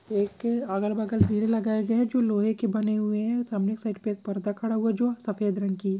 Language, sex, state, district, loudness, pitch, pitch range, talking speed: Hindi, male, Maharashtra, Chandrapur, -27 LUFS, 215 Hz, 205-225 Hz, 260 wpm